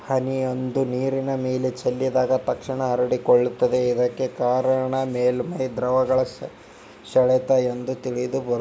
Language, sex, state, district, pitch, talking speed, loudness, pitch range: Kannada, male, Karnataka, Bijapur, 130 Hz, 95 wpm, -23 LUFS, 125-130 Hz